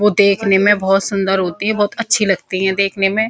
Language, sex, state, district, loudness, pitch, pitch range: Hindi, female, Uttar Pradesh, Muzaffarnagar, -15 LUFS, 200 Hz, 195-210 Hz